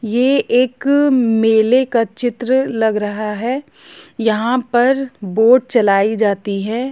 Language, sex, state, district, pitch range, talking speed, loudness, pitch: Hindi, female, Jharkhand, Jamtara, 220-255 Hz, 120 wpm, -15 LUFS, 235 Hz